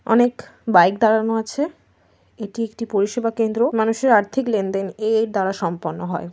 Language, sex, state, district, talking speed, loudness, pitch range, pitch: Bengali, female, West Bengal, North 24 Parganas, 150 wpm, -20 LUFS, 200-230 Hz, 220 Hz